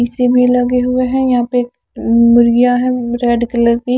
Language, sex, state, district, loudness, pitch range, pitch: Hindi, female, Haryana, Charkhi Dadri, -13 LUFS, 235-250 Hz, 245 Hz